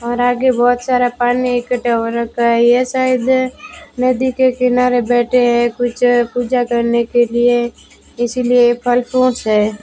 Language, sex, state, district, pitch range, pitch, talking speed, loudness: Hindi, female, Rajasthan, Bikaner, 240-250 Hz, 245 Hz, 150 wpm, -15 LUFS